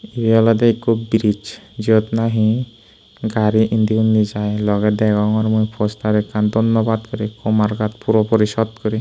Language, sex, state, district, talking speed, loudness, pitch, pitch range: Chakma, male, Tripura, Unakoti, 145 wpm, -17 LUFS, 110 Hz, 105-110 Hz